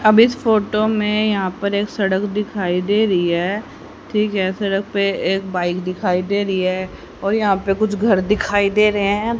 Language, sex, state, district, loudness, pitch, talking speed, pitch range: Hindi, female, Haryana, Rohtak, -18 LUFS, 200 Hz, 200 wpm, 190-210 Hz